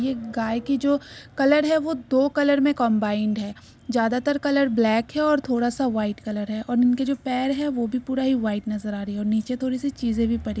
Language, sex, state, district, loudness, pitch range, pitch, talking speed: Hindi, female, Uttar Pradesh, Jyotiba Phule Nagar, -23 LUFS, 220-275 Hz, 250 Hz, 250 wpm